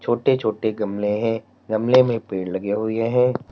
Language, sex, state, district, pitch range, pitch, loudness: Hindi, male, Uttar Pradesh, Lalitpur, 105-120 Hz, 110 Hz, -21 LUFS